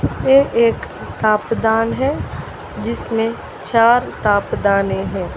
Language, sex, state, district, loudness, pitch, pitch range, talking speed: Hindi, female, Telangana, Hyderabad, -17 LUFS, 225 Hz, 215-235 Hz, 110 wpm